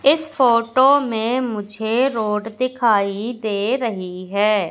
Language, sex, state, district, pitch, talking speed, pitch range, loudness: Hindi, female, Madhya Pradesh, Katni, 225 Hz, 115 wpm, 210-255 Hz, -19 LUFS